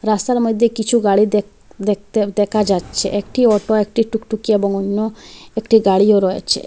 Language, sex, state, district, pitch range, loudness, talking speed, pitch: Bengali, female, Assam, Hailakandi, 200-225 Hz, -16 LUFS, 155 wpm, 210 Hz